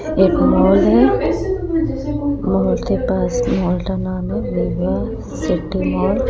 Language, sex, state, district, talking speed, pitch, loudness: Hindi, female, Rajasthan, Jaipur, 85 wpm, 180 Hz, -17 LUFS